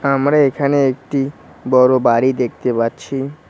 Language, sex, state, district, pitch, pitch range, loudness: Bengali, male, West Bengal, Cooch Behar, 135 Hz, 125-140 Hz, -16 LUFS